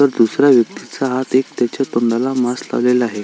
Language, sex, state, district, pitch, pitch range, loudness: Marathi, male, Maharashtra, Sindhudurg, 125 Hz, 120-130 Hz, -16 LUFS